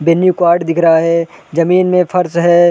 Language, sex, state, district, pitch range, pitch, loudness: Hindi, male, Chhattisgarh, Raigarh, 170-180 Hz, 170 Hz, -12 LUFS